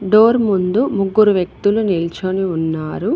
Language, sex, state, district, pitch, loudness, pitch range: Telugu, female, Telangana, Mahabubabad, 195 Hz, -16 LUFS, 180-215 Hz